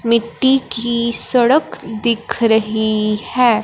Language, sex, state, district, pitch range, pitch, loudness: Hindi, male, Punjab, Fazilka, 220-240 Hz, 235 Hz, -15 LUFS